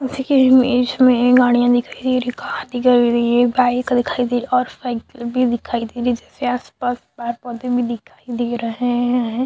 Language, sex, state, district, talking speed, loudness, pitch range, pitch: Hindi, female, Chhattisgarh, Sukma, 205 wpm, -18 LUFS, 240-250 Hz, 245 Hz